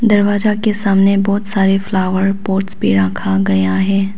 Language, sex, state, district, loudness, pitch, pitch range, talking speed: Hindi, female, Arunachal Pradesh, Papum Pare, -14 LUFS, 195 Hz, 190-205 Hz, 160 wpm